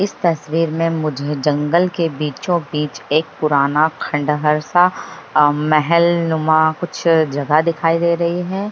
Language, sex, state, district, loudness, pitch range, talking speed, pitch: Hindi, male, Bihar, Jahanabad, -17 LUFS, 150-170 Hz, 125 wpm, 155 Hz